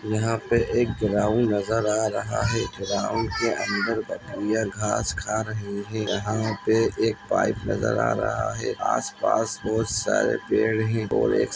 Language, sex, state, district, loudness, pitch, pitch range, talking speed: Hindi, male, Bihar, Muzaffarpur, -25 LUFS, 110 Hz, 105-115 Hz, 160 wpm